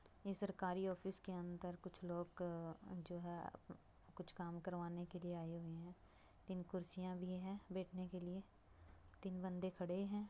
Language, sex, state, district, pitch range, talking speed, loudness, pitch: Hindi, female, Bihar, Begusarai, 175-185 Hz, 180 wpm, -49 LUFS, 180 Hz